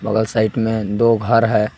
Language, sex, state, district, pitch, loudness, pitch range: Hindi, male, Jharkhand, Garhwa, 110 Hz, -17 LUFS, 110-115 Hz